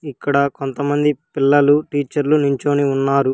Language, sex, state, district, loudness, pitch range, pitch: Telugu, female, Telangana, Hyderabad, -17 LUFS, 140-145 Hz, 145 Hz